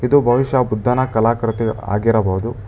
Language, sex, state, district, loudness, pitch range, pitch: Kannada, male, Karnataka, Bangalore, -17 LUFS, 110-125 Hz, 115 Hz